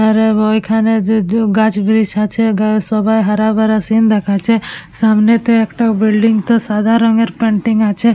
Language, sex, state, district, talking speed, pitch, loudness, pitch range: Bengali, female, West Bengal, Purulia, 160 wpm, 220 Hz, -13 LUFS, 215-225 Hz